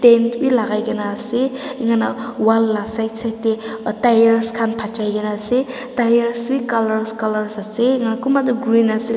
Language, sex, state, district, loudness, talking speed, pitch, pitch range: Nagamese, female, Nagaland, Dimapur, -18 LUFS, 175 wpm, 230 Hz, 220-240 Hz